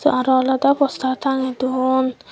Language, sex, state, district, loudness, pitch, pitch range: Chakma, female, Tripura, Dhalai, -19 LUFS, 260 Hz, 260-270 Hz